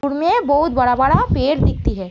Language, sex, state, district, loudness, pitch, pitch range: Hindi, female, Uttar Pradesh, Etah, -16 LUFS, 275 Hz, 245-290 Hz